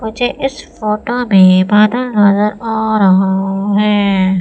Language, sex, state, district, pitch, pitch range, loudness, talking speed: Hindi, female, Madhya Pradesh, Umaria, 210 Hz, 195-225 Hz, -12 LUFS, 120 wpm